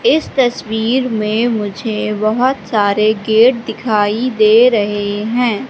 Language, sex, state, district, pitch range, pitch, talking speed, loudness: Hindi, female, Madhya Pradesh, Katni, 210-245 Hz, 220 Hz, 115 wpm, -14 LUFS